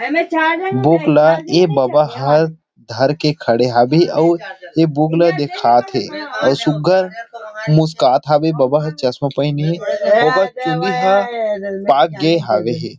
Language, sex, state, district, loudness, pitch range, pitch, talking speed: Chhattisgarhi, male, Chhattisgarh, Rajnandgaon, -15 LUFS, 150-190 Hz, 160 Hz, 130 wpm